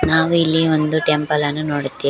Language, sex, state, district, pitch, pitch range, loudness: Kannada, female, Karnataka, Koppal, 155 Hz, 150-160 Hz, -17 LUFS